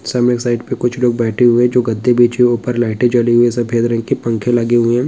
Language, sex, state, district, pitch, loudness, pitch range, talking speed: Hindi, male, Bihar, Jamui, 120 Hz, -14 LUFS, 120-125 Hz, 295 wpm